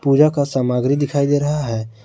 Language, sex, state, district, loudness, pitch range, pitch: Hindi, male, Jharkhand, Garhwa, -18 LUFS, 125-145 Hz, 140 Hz